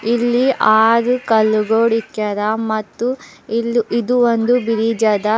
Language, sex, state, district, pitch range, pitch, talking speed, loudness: Kannada, female, Karnataka, Bidar, 220-240 Hz, 230 Hz, 110 wpm, -16 LUFS